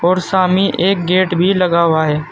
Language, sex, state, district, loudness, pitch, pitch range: Hindi, male, Uttar Pradesh, Saharanpur, -14 LUFS, 180 Hz, 170-185 Hz